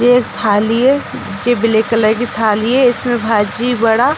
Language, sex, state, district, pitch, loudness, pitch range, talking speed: Hindi, female, Bihar, Gopalganj, 230 Hz, -14 LUFS, 220-245 Hz, 200 wpm